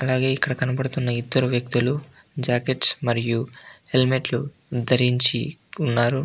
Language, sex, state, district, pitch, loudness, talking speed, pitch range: Telugu, male, Andhra Pradesh, Anantapur, 130 Hz, -21 LUFS, 105 wpm, 120-130 Hz